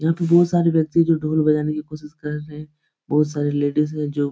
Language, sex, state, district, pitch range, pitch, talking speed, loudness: Hindi, male, Bihar, Supaul, 150-160 Hz, 150 Hz, 265 wpm, -20 LUFS